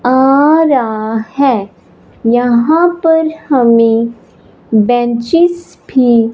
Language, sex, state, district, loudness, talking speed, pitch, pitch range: Hindi, male, Punjab, Fazilka, -11 LUFS, 75 wpm, 245 Hz, 230-310 Hz